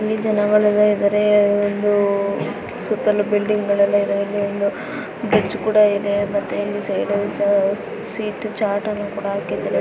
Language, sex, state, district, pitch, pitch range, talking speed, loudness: Kannada, female, Karnataka, Dakshina Kannada, 205 Hz, 200-210 Hz, 110 wpm, -19 LUFS